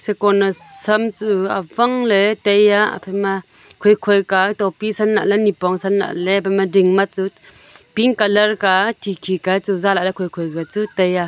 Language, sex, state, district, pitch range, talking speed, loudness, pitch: Wancho, female, Arunachal Pradesh, Longding, 190-210 Hz, 180 wpm, -17 LUFS, 195 Hz